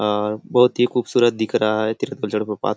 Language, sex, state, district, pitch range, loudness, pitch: Hindi, male, Chhattisgarh, Bastar, 110-125 Hz, -20 LUFS, 110 Hz